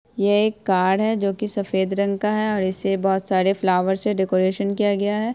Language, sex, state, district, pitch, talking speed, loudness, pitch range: Hindi, female, Bihar, Saharsa, 200 Hz, 225 wpm, -21 LUFS, 190-210 Hz